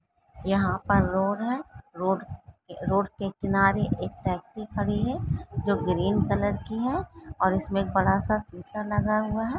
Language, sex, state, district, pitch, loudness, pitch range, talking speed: Hindi, female, West Bengal, Jalpaiguri, 200 Hz, -27 LUFS, 195-215 Hz, 165 wpm